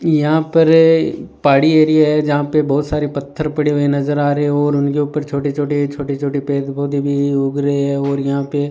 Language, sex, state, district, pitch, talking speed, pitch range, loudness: Hindi, male, Rajasthan, Bikaner, 145 Hz, 225 wpm, 140-150 Hz, -16 LUFS